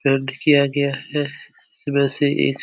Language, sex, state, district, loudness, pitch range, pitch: Hindi, male, Uttar Pradesh, Etah, -20 LUFS, 135-145 Hz, 140 Hz